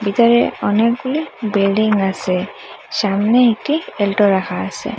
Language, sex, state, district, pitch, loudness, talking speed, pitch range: Bengali, female, Assam, Hailakandi, 210 Hz, -16 LUFS, 110 wpm, 200-235 Hz